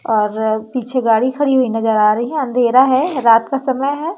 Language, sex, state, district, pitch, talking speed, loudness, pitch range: Hindi, female, Madhya Pradesh, Umaria, 250 Hz, 215 wpm, -15 LUFS, 225-265 Hz